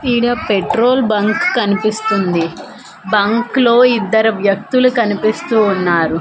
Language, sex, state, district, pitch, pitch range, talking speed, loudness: Telugu, female, Andhra Pradesh, Manyam, 220 Hz, 200-240 Hz, 95 wpm, -14 LUFS